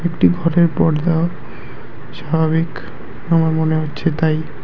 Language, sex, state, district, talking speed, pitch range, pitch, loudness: Bengali, male, West Bengal, Cooch Behar, 105 wpm, 150-165 Hz, 160 Hz, -17 LUFS